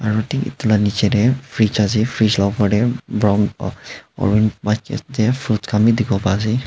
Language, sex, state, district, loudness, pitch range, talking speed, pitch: Nagamese, male, Nagaland, Dimapur, -18 LUFS, 105-120 Hz, 160 wpm, 110 Hz